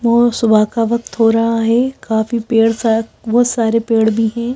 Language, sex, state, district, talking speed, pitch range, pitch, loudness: Hindi, female, Madhya Pradesh, Bhopal, 195 wpm, 225-235 Hz, 230 Hz, -14 LUFS